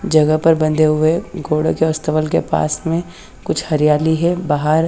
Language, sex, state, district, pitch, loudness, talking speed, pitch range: Hindi, female, Haryana, Charkhi Dadri, 155 Hz, -16 LUFS, 170 wpm, 155-165 Hz